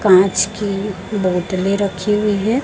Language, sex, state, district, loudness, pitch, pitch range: Hindi, female, Chhattisgarh, Raipur, -17 LUFS, 200 Hz, 190-210 Hz